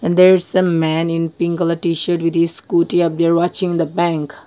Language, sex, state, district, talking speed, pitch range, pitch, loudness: English, female, Nagaland, Dimapur, 230 wpm, 165-175 Hz, 170 Hz, -16 LUFS